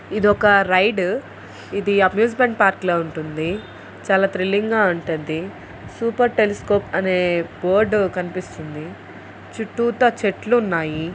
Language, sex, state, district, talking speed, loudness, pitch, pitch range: Telugu, female, Andhra Pradesh, Guntur, 100 wpm, -19 LUFS, 190 Hz, 165-210 Hz